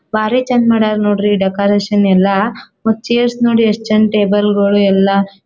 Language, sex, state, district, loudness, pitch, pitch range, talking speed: Kannada, female, Karnataka, Dharwad, -13 LUFS, 205 Hz, 200-225 Hz, 165 wpm